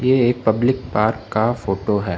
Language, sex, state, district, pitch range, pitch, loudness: Hindi, male, Arunachal Pradesh, Lower Dibang Valley, 105-125 Hz, 110 Hz, -19 LUFS